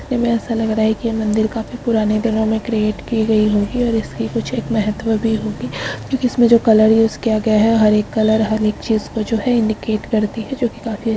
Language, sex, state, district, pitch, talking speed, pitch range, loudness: Hindi, female, Bihar, Samastipur, 220 Hz, 260 wpm, 215-230 Hz, -17 LUFS